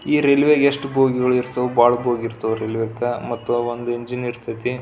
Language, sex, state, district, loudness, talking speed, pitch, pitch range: Kannada, male, Karnataka, Belgaum, -20 LUFS, 150 wpm, 120 Hz, 120-125 Hz